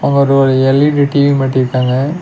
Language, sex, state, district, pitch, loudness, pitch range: Tamil, male, Tamil Nadu, Nilgiris, 135 Hz, -12 LUFS, 130-140 Hz